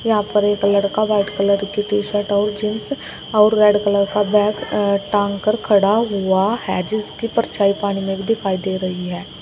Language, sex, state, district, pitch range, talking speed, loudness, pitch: Hindi, female, Uttar Pradesh, Shamli, 200-210 Hz, 180 wpm, -18 LUFS, 205 Hz